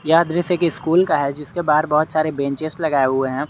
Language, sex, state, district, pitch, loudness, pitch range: Hindi, male, Jharkhand, Garhwa, 155 Hz, -19 LUFS, 145-165 Hz